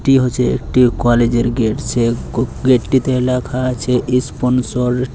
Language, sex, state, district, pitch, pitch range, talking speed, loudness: Bengali, male, West Bengal, Purulia, 125 Hz, 120-125 Hz, 150 wpm, -16 LUFS